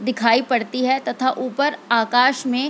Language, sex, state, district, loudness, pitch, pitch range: Hindi, female, Bihar, Lakhisarai, -19 LUFS, 255 Hz, 240-265 Hz